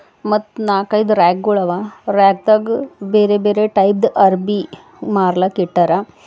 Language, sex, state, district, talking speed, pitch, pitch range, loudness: Kannada, female, Karnataka, Bidar, 115 wpm, 200 Hz, 190-215 Hz, -15 LUFS